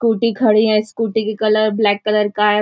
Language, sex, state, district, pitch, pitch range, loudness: Hindi, female, Maharashtra, Nagpur, 215 Hz, 210-220 Hz, -16 LUFS